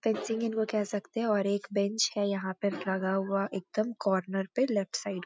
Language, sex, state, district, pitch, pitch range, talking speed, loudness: Hindi, female, Uttarakhand, Uttarkashi, 200 Hz, 195-220 Hz, 230 wpm, -31 LUFS